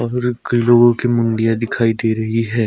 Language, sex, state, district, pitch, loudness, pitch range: Hindi, male, Chhattisgarh, Sukma, 115 Hz, -16 LUFS, 115-120 Hz